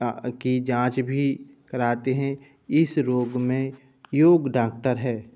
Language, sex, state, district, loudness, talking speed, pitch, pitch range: Hindi, male, Uttar Pradesh, Budaun, -24 LUFS, 145 wpm, 130 Hz, 125-140 Hz